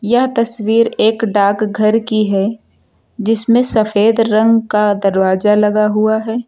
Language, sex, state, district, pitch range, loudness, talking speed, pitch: Hindi, female, Uttar Pradesh, Lucknow, 210-225 Hz, -13 LUFS, 130 wpm, 220 Hz